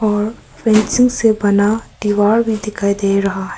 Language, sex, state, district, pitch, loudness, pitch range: Hindi, male, Arunachal Pradesh, Papum Pare, 215 Hz, -15 LUFS, 200-220 Hz